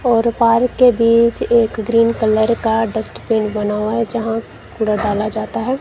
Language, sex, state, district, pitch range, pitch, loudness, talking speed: Hindi, female, Punjab, Kapurthala, 220-235 Hz, 225 Hz, -16 LUFS, 165 wpm